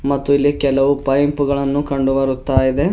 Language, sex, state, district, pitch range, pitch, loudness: Kannada, male, Karnataka, Bidar, 135-140 Hz, 140 Hz, -17 LUFS